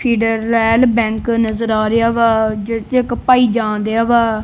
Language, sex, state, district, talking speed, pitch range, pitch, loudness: Punjabi, male, Punjab, Kapurthala, 160 wpm, 220-235 Hz, 230 Hz, -15 LUFS